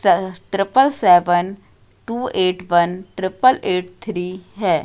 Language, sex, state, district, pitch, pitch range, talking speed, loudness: Hindi, female, Madhya Pradesh, Katni, 185 Hz, 180-210 Hz, 110 wpm, -18 LUFS